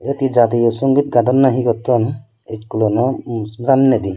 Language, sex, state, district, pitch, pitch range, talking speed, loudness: Chakma, male, Tripura, Dhalai, 120 Hz, 115-135 Hz, 160 wpm, -16 LUFS